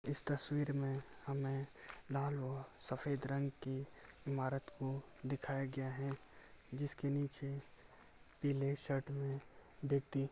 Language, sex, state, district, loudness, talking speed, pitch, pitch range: Hindi, male, Uttar Pradesh, Gorakhpur, -42 LUFS, 130 wpm, 140 Hz, 135-140 Hz